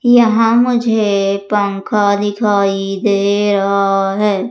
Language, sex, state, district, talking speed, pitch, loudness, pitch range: Hindi, female, Madhya Pradesh, Umaria, 95 wpm, 205 Hz, -14 LUFS, 200-220 Hz